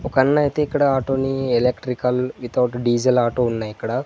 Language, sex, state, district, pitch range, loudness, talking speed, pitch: Telugu, male, Andhra Pradesh, Sri Satya Sai, 120-135 Hz, -20 LUFS, 165 wpm, 125 Hz